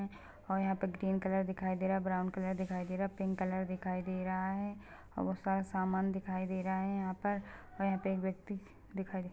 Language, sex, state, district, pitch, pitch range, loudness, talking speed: Hindi, female, Chhattisgarh, Balrampur, 190 Hz, 185-195 Hz, -37 LUFS, 245 wpm